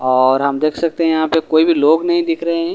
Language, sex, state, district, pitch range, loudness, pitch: Hindi, male, Delhi, New Delhi, 150-170 Hz, -15 LUFS, 160 Hz